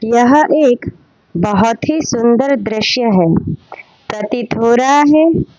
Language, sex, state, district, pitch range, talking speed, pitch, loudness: Hindi, female, Gujarat, Valsad, 220-285 Hz, 120 wpm, 240 Hz, -12 LUFS